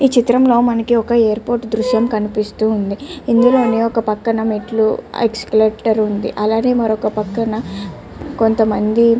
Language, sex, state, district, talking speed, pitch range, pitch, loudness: Telugu, female, Andhra Pradesh, Chittoor, 145 wpm, 215-235 Hz, 225 Hz, -16 LUFS